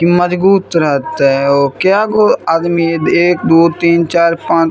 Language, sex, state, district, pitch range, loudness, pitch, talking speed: Maithili, male, Bihar, Samastipur, 165-175 Hz, -11 LUFS, 170 Hz, 165 wpm